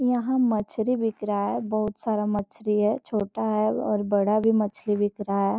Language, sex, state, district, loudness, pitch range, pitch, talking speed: Hindi, female, Bihar, Gopalganj, -25 LUFS, 205-225 Hz, 215 Hz, 205 wpm